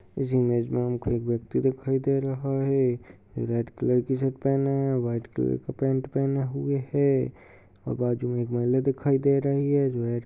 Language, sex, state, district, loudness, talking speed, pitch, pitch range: Hindi, male, Uttar Pradesh, Hamirpur, -26 LUFS, 170 wpm, 130 Hz, 120-135 Hz